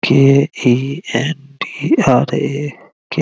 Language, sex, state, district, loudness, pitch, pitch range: Hindi, male, Bihar, Araria, -15 LUFS, 140 Hz, 130-145 Hz